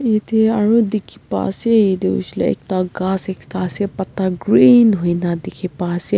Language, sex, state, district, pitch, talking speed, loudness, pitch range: Nagamese, female, Nagaland, Kohima, 190 Hz, 175 wpm, -17 LUFS, 175-215 Hz